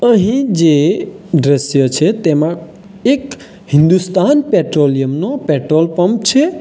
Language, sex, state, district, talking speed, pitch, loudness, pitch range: Gujarati, male, Gujarat, Valsad, 110 wpm, 175 Hz, -13 LUFS, 150-220 Hz